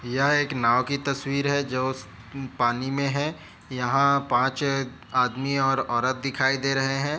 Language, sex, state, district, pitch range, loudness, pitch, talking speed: Hindi, male, Chhattisgarh, Bilaspur, 130-140 Hz, -24 LUFS, 135 Hz, 160 wpm